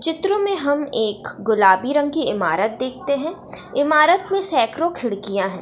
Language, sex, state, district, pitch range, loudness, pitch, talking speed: Hindi, female, Bihar, Gaya, 220-335 Hz, -19 LUFS, 285 Hz, 170 wpm